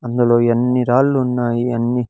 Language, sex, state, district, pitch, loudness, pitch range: Telugu, male, Andhra Pradesh, Sri Satya Sai, 120 Hz, -16 LUFS, 120-125 Hz